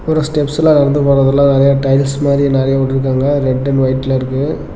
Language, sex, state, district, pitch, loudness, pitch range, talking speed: Tamil, male, Tamil Nadu, Namakkal, 140 Hz, -13 LUFS, 135-145 Hz, 175 wpm